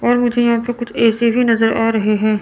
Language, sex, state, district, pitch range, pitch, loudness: Hindi, female, Chandigarh, Chandigarh, 225-240 Hz, 235 Hz, -15 LUFS